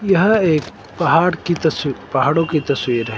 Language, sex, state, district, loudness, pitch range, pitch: Hindi, male, Himachal Pradesh, Shimla, -17 LUFS, 125-170 Hz, 155 Hz